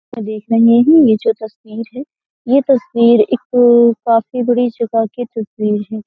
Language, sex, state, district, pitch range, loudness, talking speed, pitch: Hindi, female, Uttar Pradesh, Jyotiba Phule Nagar, 220-245 Hz, -13 LUFS, 170 wpm, 230 Hz